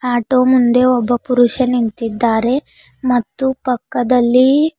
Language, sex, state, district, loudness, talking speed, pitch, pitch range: Kannada, female, Karnataka, Bidar, -15 LUFS, 90 wpm, 250 Hz, 240-255 Hz